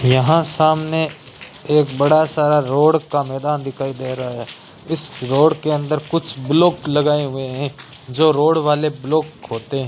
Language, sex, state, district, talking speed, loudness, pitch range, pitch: Hindi, male, Rajasthan, Bikaner, 165 wpm, -18 LUFS, 135-155 Hz, 150 Hz